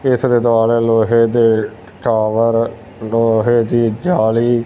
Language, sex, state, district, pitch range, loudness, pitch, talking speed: Punjabi, male, Punjab, Fazilka, 110-120 Hz, -14 LUFS, 115 Hz, 115 wpm